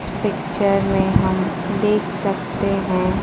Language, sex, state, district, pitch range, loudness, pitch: Hindi, female, Bihar, Kaimur, 190-200 Hz, -20 LUFS, 195 Hz